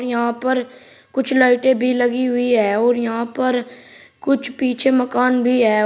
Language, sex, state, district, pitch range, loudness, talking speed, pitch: Hindi, male, Uttar Pradesh, Shamli, 240-255 Hz, -18 LUFS, 165 wpm, 250 Hz